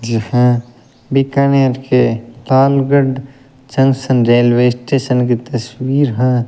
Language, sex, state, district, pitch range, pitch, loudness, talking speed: Hindi, male, Rajasthan, Bikaner, 120-135 Hz, 125 Hz, -14 LUFS, 95 wpm